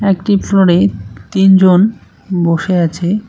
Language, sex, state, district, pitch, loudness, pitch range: Bengali, male, West Bengal, Cooch Behar, 185 Hz, -12 LUFS, 170-195 Hz